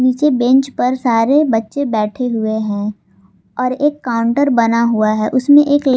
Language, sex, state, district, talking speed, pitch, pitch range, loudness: Hindi, female, Jharkhand, Palamu, 160 wpm, 250 Hz, 225-275 Hz, -15 LUFS